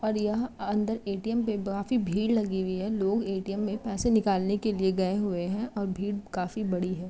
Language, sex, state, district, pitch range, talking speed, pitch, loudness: Hindi, female, Uttar Pradesh, Jyotiba Phule Nagar, 190-215 Hz, 210 wpm, 200 Hz, -29 LUFS